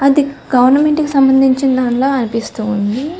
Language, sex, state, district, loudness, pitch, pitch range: Telugu, female, Telangana, Karimnagar, -13 LUFS, 265 Hz, 245-280 Hz